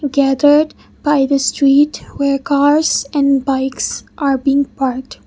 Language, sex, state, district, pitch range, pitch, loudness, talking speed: English, female, Mizoram, Aizawl, 275-290 Hz, 280 Hz, -15 LUFS, 125 wpm